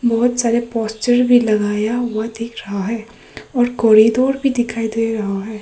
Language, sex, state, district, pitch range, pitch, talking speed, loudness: Hindi, female, Arunachal Pradesh, Papum Pare, 220-240 Hz, 230 Hz, 170 wpm, -17 LUFS